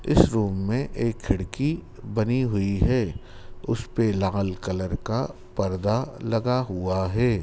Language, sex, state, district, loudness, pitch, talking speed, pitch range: Hindi, male, Madhya Pradesh, Dhar, -25 LUFS, 110 Hz, 135 wpm, 95-125 Hz